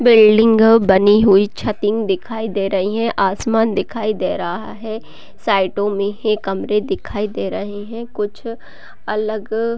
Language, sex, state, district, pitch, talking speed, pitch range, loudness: Hindi, female, Chhattisgarh, Raigarh, 215 Hz, 140 wpm, 205-225 Hz, -17 LUFS